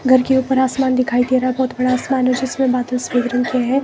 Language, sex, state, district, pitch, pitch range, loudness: Hindi, female, Himachal Pradesh, Shimla, 255 Hz, 250-260 Hz, -17 LUFS